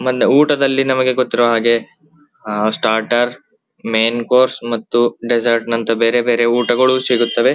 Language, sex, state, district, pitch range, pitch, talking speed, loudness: Kannada, male, Karnataka, Belgaum, 115-130 Hz, 120 Hz, 135 wpm, -15 LUFS